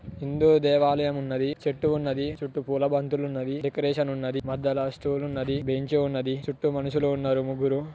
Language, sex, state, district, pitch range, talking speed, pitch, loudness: Telugu, male, Telangana, Nalgonda, 135-145 Hz, 160 wpm, 140 Hz, -26 LUFS